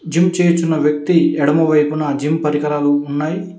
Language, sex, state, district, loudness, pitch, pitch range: Telugu, male, Telangana, Mahabubabad, -16 LUFS, 155 Hz, 150-165 Hz